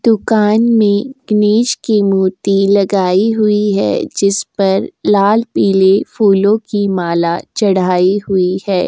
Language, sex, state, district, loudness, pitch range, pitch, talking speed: Hindi, female, Uttar Pradesh, Jyotiba Phule Nagar, -13 LUFS, 195-215 Hz, 200 Hz, 120 wpm